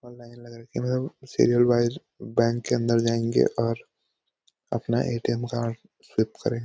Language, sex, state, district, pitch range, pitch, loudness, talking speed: Hindi, male, Uttarakhand, Uttarkashi, 115-120 Hz, 120 Hz, -25 LUFS, 110 wpm